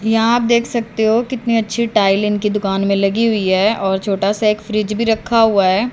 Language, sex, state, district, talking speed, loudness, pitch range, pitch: Hindi, female, Haryana, Jhajjar, 235 wpm, -16 LUFS, 200-230 Hz, 215 Hz